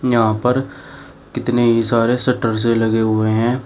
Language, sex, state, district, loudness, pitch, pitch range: Hindi, male, Uttar Pradesh, Shamli, -16 LUFS, 120 Hz, 115-125 Hz